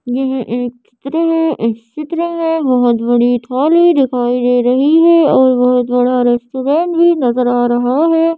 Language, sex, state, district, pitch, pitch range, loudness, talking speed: Hindi, female, Madhya Pradesh, Bhopal, 255 Hz, 245-325 Hz, -13 LUFS, 165 wpm